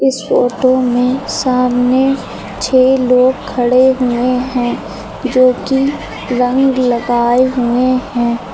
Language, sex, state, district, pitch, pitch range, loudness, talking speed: Hindi, female, Uttar Pradesh, Lucknow, 255 Hz, 245-260 Hz, -13 LUFS, 100 wpm